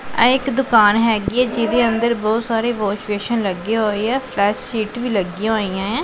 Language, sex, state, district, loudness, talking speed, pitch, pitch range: Punjabi, female, Punjab, Pathankot, -18 LUFS, 200 wpm, 225 Hz, 205-235 Hz